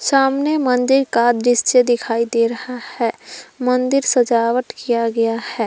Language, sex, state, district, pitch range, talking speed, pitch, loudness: Hindi, female, Jharkhand, Palamu, 230-255 Hz, 135 wpm, 245 Hz, -17 LUFS